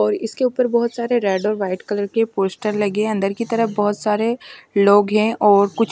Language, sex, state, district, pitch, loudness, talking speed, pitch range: Hindi, female, Bihar, West Champaran, 210 Hz, -19 LUFS, 235 wpm, 200-230 Hz